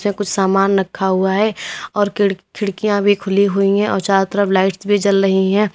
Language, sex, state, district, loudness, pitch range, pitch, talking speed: Hindi, female, Uttar Pradesh, Lalitpur, -16 LUFS, 195-205 Hz, 200 Hz, 220 wpm